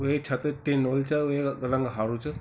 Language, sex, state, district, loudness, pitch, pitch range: Garhwali, male, Uttarakhand, Tehri Garhwal, -27 LUFS, 140 Hz, 130-145 Hz